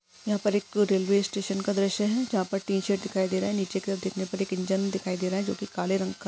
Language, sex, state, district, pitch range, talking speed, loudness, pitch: Hindi, female, Maharashtra, Nagpur, 190-200 Hz, 275 wpm, -28 LUFS, 195 Hz